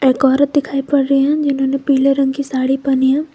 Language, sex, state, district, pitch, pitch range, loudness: Hindi, female, Jharkhand, Garhwa, 275 Hz, 270-280 Hz, -15 LUFS